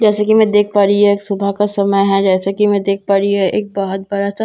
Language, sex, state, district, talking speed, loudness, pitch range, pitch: Hindi, female, Bihar, Katihar, 285 wpm, -14 LUFS, 195-205 Hz, 200 Hz